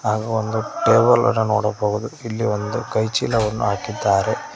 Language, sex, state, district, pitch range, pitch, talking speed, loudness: Kannada, male, Karnataka, Koppal, 105-115 Hz, 110 Hz, 120 wpm, -20 LUFS